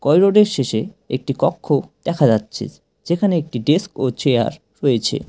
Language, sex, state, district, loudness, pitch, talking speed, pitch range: Bengali, male, West Bengal, Cooch Behar, -18 LUFS, 150 Hz, 145 wpm, 125-180 Hz